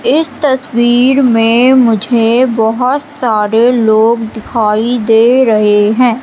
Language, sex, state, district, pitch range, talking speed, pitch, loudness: Hindi, female, Madhya Pradesh, Katni, 225-255 Hz, 105 wpm, 235 Hz, -10 LUFS